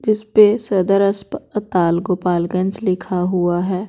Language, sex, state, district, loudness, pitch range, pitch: Hindi, female, Bihar, Patna, -17 LUFS, 180-210 Hz, 190 Hz